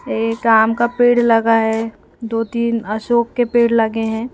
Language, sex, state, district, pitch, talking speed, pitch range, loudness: Hindi, female, Madhya Pradesh, Umaria, 230 Hz, 180 wpm, 225-235 Hz, -16 LUFS